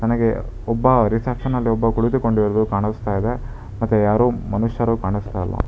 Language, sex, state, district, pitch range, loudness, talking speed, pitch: Kannada, male, Karnataka, Bangalore, 105-115 Hz, -20 LUFS, 125 wpm, 115 Hz